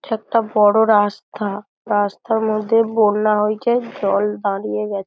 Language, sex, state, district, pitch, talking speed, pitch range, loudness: Bengali, female, West Bengal, Dakshin Dinajpur, 210 Hz, 120 wpm, 205-220 Hz, -18 LUFS